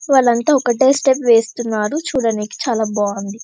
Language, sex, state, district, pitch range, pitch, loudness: Telugu, female, Telangana, Karimnagar, 215-265 Hz, 235 Hz, -16 LUFS